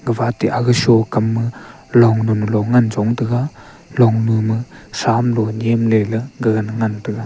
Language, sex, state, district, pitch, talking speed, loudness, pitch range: Wancho, male, Arunachal Pradesh, Longding, 115 Hz, 200 wpm, -17 LUFS, 110-120 Hz